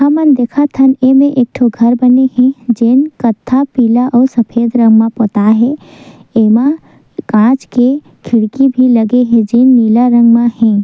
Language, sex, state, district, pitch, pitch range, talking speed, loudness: Chhattisgarhi, female, Chhattisgarh, Sukma, 245 Hz, 230-265 Hz, 165 wpm, -10 LUFS